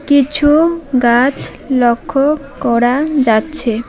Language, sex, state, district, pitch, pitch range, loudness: Bengali, female, West Bengal, Alipurduar, 275 Hz, 240-295 Hz, -13 LUFS